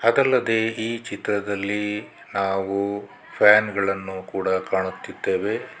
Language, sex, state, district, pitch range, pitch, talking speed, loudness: Kannada, male, Karnataka, Bangalore, 95-110 Hz, 100 Hz, 85 wpm, -23 LUFS